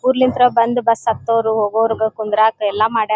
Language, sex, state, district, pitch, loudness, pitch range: Kannada, female, Karnataka, Dharwad, 225 Hz, -16 LUFS, 220-230 Hz